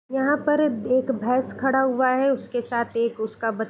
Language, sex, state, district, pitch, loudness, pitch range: Hindi, female, Bihar, Gopalganj, 255 Hz, -23 LUFS, 230-265 Hz